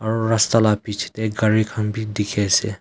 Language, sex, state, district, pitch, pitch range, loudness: Nagamese, male, Nagaland, Kohima, 110 Hz, 105-110 Hz, -20 LUFS